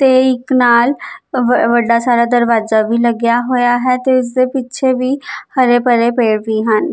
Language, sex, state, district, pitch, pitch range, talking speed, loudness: Punjabi, female, Chandigarh, Chandigarh, 245 Hz, 235-255 Hz, 165 wpm, -13 LUFS